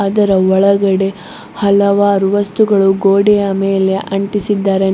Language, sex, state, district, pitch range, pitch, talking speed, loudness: Kannada, female, Karnataka, Bidar, 195-205 Hz, 200 Hz, 85 wpm, -13 LUFS